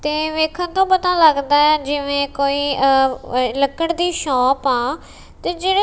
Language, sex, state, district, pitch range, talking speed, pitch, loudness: Punjabi, female, Punjab, Kapurthala, 270-330 Hz, 155 wpm, 290 Hz, -17 LUFS